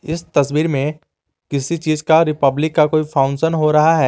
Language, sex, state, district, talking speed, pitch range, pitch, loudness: Hindi, male, Jharkhand, Garhwa, 190 wpm, 145-160 Hz, 155 Hz, -17 LUFS